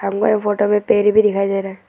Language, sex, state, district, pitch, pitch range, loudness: Hindi, male, Arunachal Pradesh, Lower Dibang Valley, 205 Hz, 195-210 Hz, -16 LUFS